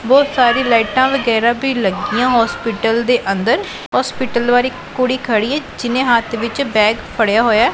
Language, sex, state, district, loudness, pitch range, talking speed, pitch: Punjabi, female, Punjab, Pathankot, -15 LUFS, 225-255 Hz, 155 wpm, 235 Hz